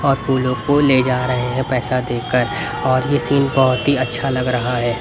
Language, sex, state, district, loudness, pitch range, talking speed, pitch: Hindi, male, Haryana, Rohtak, -17 LUFS, 125-135 Hz, 215 wpm, 130 Hz